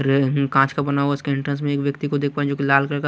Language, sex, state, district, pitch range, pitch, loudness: Hindi, male, Chhattisgarh, Raipur, 140-145 Hz, 140 Hz, -21 LUFS